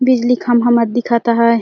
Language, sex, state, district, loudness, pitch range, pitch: Chhattisgarhi, female, Chhattisgarh, Jashpur, -14 LUFS, 235-245 Hz, 240 Hz